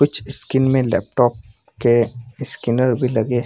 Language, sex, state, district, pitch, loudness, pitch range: Hindi, male, Bihar, Purnia, 120 Hz, -19 LUFS, 115-130 Hz